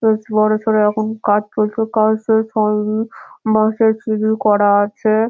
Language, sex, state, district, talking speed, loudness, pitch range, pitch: Bengali, female, West Bengal, Malda, 160 wpm, -16 LUFS, 215-220 Hz, 215 Hz